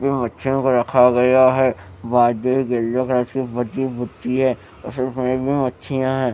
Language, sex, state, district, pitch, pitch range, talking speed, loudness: Hindi, male, Bihar, West Champaran, 125 Hz, 120-130 Hz, 75 wpm, -19 LUFS